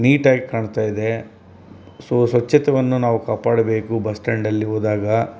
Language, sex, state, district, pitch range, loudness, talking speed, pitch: Kannada, male, Karnataka, Bellary, 110-120 Hz, -19 LUFS, 110 wpm, 115 Hz